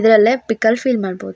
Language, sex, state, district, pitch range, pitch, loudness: Kannada, female, Karnataka, Shimoga, 215-235 Hz, 225 Hz, -16 LUFS